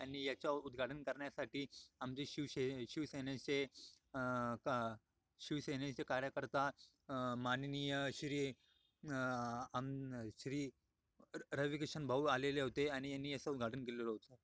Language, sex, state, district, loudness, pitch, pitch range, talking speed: Marathi, male, Maharashtra, Aurangabad, -43 LUFS, 135 Hz, 125-140 Hz, 90 wpm